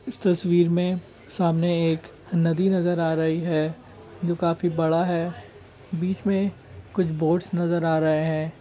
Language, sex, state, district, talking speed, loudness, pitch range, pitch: Hindi, male, Bihar, Saran, 155 wpm, -24 LUFS, 160-180 Hz, 170 Hz